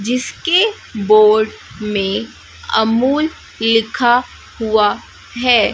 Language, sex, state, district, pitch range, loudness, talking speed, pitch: Hindi, female, Chhattisgarh, Raipur, 215-250 Hz, -15 LUFS, 75 wpm, 225 Hz